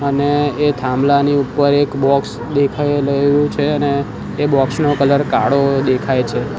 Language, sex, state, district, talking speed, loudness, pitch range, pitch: Gujarati, male, Gujarat, Gandhinagar, 155 wpm, -15 LUFS, 135-145 Hz, 140 Hz